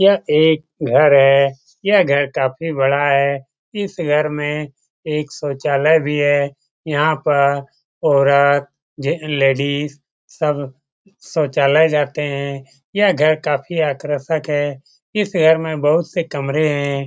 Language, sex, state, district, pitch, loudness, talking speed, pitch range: Hindi, male, Bihar, Lakhisarai, 145 Hz, -17 LUFS, 130 wpm, 140-155 Hz